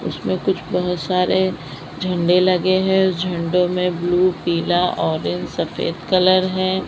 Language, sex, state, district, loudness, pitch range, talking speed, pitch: Hindi, female, Maharashtra, Mumbai Suburban, -19 LUFS, 175-185 Hz, 140 wpm, 180 Hz